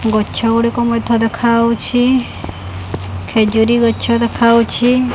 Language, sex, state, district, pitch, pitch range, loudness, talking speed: Odia, female, Odisha, Khordha, 230 Hz, 215-235 Hz, -13 LUFS, 80 wpm